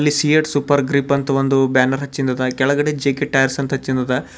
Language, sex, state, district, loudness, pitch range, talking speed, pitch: Kannada, male, Karnataka, Bidar, -17 LUFS, 135-145 Hz, 180 wpm, 140 Hz